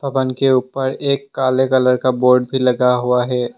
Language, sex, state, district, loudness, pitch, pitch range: Hindi, male, Assam, Sonitpur, -16 LUFS, 130 Hz, 125-130 Hz